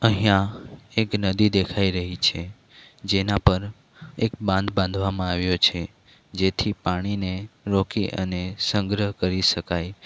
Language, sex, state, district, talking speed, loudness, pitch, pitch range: Gujarati, male, Gujarat, Valsad, 120 wpm, -23 LUFS, 95 Hz, 95-105 Hz